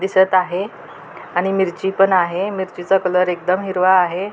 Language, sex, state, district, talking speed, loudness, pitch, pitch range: Marathi, female, Maharashtra, Pune, 155 wpm, -17 LUFS, 185 Hz, 180-190 Hz